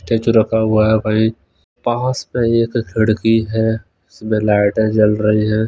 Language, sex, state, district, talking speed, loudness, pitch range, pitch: Hindi, male, Punjab, Fazilka, 160 wpm, -16 LUFS, 105-115 Hz, 110 Hz